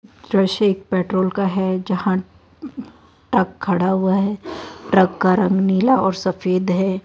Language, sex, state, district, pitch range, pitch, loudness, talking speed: Hindi, female, Rajasthan, Jaipur, 185-200 Hz, 190 Hz, -19 LUFS, 145 wpm